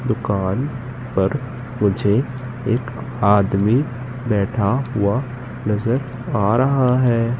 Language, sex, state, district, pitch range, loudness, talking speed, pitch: Hindi, male, Madhya Pradesh, Katni, 105-125 Hz, -20 LUFS, 90 wpm, 125 Hz